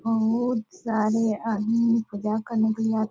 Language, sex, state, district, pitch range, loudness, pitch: Hindi, female, Bihar, Purnia, 215-230 Hz, -25 LUFS, 225 Hz